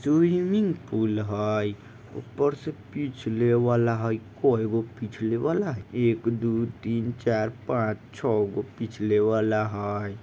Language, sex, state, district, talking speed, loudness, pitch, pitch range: Maithili, male, Bihar, Vaishali, 40 wpm, -26 LUFS, 115 Hz, 110-120 Hz